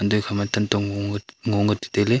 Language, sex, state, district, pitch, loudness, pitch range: Wancho, male, Arunachal Pradesh, Longding, 105 Hz, -23 LUFS, 100-105 Hz